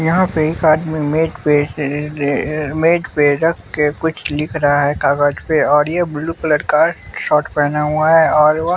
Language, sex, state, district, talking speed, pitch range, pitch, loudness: Hindi, male, Bihar, West Champaran, 200 wpm, 145-160 Hz, 150 Hz, -16 LUFS